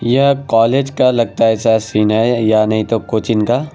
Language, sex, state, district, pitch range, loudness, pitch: Hindi, male, Bihar, Araria, 110-125 Hz, -14 LUFS, 115 Hz